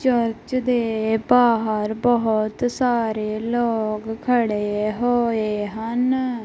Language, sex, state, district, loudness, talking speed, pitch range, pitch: Punjabi, female, Punjab, Kapurthala, -21 LUFS, 85 wpm, 215-245 Hz, 225 Hz